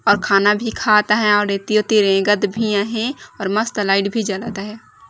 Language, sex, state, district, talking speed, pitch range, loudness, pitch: Chhattisgarhi, female, Chhattisgarh, Raigarh, 210 wpm, 200-215 Hz, -17 LUFS, 210 Hz